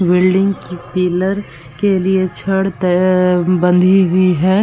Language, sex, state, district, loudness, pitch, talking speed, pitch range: Hindi, female, Bihar, Vaishali, -14 LUFS, 185 Hz, 130 wpm, 180-190 Hz